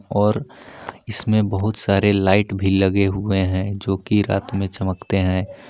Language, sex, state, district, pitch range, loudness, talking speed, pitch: Hindi, male, Jharkhand, Palamu, 95-105 Hz, -20 LUFS, 160 wpm, 100 Hz